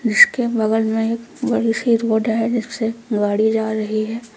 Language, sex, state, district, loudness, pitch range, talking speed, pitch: Hindi, female, Uttar Pradesh, Lucknow, -18 LUFS, 220-230 Hz, 180 wpm, 225 Hz